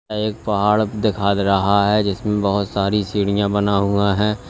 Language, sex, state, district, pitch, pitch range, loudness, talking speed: Hindi, male, Uttar Pradesh, Lalitpur, 100 Hz, 100-105 Hz, -18 LUFS, 185 wpm